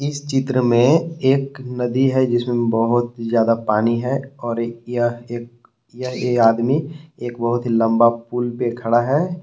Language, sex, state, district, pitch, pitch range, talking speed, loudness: Hindi, male, Jharkhand, Palamu, 120 Hz, 115-130 Hz, 170 wpm, -19 LUFS